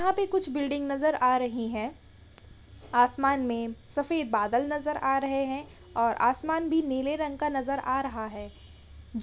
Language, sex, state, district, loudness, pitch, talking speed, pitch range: Hindi, female, Chhattisgarh, Sukma, -28 LUFS, 270 Hz, 170 wpm, 230-295 Hz